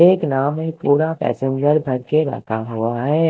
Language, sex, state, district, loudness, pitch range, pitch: Hindi, male, Himachal Pradesh, Shimla, -19 LUFS, 125-155 Hz, 140 Hz